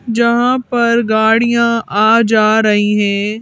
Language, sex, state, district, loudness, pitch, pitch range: Hindi, female, Madhya Pradesh, Bhopal, -12 LUFS, 225 Hz, 215-235 Hz